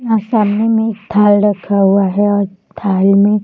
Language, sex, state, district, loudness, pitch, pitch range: Hindi, female, Bihar, Bhagalpur, -13 LUFS, 205 Hz, 200-210 Hz